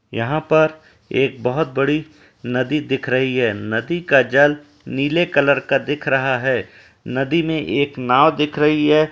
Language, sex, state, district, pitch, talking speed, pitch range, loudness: Hindi, male, Uttar Pradesh, Etah, 140 Hz, 165 wpm, 130-155 Hz, -18 LUFS